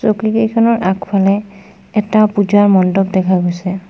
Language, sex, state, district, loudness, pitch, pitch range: Assamese, female, Assam, Sonitpur, -13 LUFS, 200 Hz, 190-215 Hz